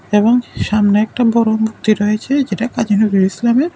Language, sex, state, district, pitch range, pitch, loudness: Bengali, male, Tripura, West Tripura, 210-240 Hz, 220 Hz, -15 LUFS